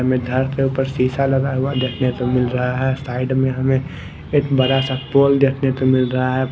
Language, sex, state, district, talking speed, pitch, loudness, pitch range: Hindi, male, Bihar, West Champaran, 200 wpm, 130 Hz, -18 LUFS, 130-135 Hz